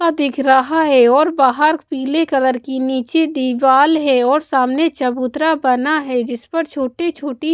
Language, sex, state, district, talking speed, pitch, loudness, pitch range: Hindi, female, Bihar, West Champaran, 150 wpm, 275 Hz, -15 LUFS, 260-310 Hz